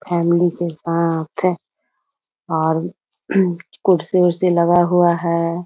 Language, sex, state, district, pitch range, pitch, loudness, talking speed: Hindi, female, Bihar, Muzaffarpur, 170-175 Hz, 170 Hz, -18 LUFS, 85 wpm